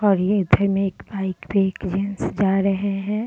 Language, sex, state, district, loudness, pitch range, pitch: Hindi, female, Bihar, Gaya, -21 LUFS, 195-200 Hz, 195 Hz